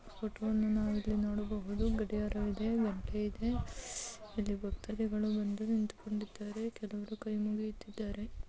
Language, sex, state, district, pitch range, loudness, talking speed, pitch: Kannada, male, Karnataka, Gulbarga, 210-215 Hz, -37 LUFS, 105 wpm, 215 Hz